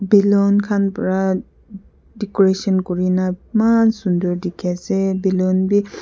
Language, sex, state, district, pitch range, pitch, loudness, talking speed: Nagamese, female, Nagaland, Kohima, 185-205 Hz, 195 Hz, -18 LUFS, 110 wpm